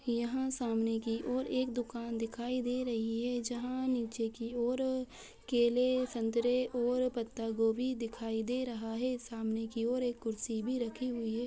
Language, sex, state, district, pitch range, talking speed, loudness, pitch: Hindi, female, Chhattisgarh, Balrampur, 225-250 Hz, 155 wpm, -35 LUFS, 240 Hz